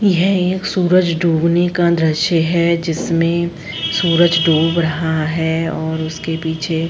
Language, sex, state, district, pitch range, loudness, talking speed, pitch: Hindi, female, Uttar Pradesh, Jalaun, 160-170 Hz, -16 LUFS, 140 wpm, 165 Hz